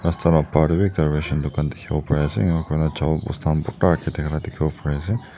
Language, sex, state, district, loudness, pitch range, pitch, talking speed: Nagamese, male, Nagaland, Dimapur, -22 LUFS, 75-85 Hz, 80 Hz, 245 wpm